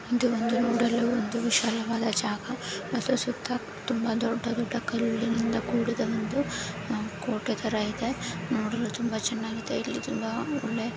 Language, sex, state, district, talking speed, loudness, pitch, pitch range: Kannada, female, Karnataka, Dakshina Kannada, 135 wpm, -29 LUFS, 230 Hz, 225-240 Hz